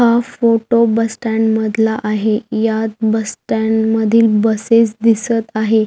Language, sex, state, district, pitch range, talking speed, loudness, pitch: Marathi, female, Maharashtra, Aurangabad, 220-230 Hz, 135 wpm, -15 LUFS, 225 Hz